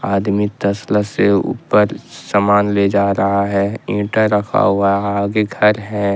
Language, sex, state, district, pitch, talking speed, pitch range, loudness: Hindi, male, Jharkhand, Ranchi, 100 Hz, 145 wpm, 100-105 Hz, -16 LUFS